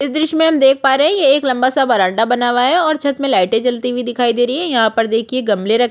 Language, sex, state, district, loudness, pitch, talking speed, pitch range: Hindi, female, Chhattisgarh, Korba, -14 LUFS, 250 Hz, 295 wpm, 235-275 Hz